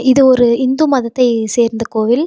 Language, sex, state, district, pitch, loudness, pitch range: Tamil, female, Tamil Nadu, Nilgiris, 245 Hz, -13 LUFS, 235-260 Hz